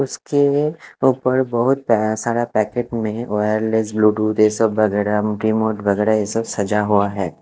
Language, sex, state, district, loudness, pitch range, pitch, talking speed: Hindi, male, Odisha, Khordha, -18 LUFS, 105-120 Hz, 110 Hz, 130 wpm